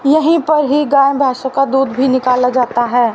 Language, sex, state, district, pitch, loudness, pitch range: Hindi, female, Haryana, Rohtak, 270 Hz, -13 LUFS, 250-285 Hz